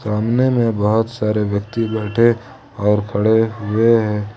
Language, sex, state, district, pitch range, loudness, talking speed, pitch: Hindi, male, Jharkhand, Ranchi, 105-115 Hz, -17 LUFS, 135 wpm, 110 Hz